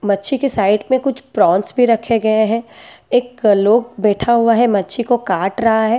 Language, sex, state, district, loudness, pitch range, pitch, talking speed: Hindi, female, Delhi, New Delhi, -15 LUFS, 205-240 Hz, 225 Hz, 200 wpm